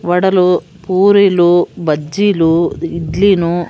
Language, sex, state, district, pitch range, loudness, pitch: Telugu, female, Andhra Pradesh, Sri Satya Sai, 170-190 Hz, -13 LUFS, 175 Hz